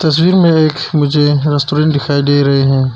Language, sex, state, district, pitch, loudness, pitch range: Hindi, male, Arunachal Pradesh, Papum Pare, 145 Hz, -12 LUFS, 145-155 Hz